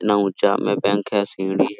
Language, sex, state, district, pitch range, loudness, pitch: Hindi, male, Jharkhand, Sahebganj, 95-100 Hz, -20 LUFS, 100 Hz